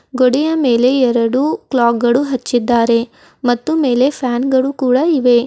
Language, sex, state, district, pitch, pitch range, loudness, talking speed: Kannada, female, Karnataka, Bidar, 250 Hz, 240-270 Hz, -14 LUFS, 130 wpm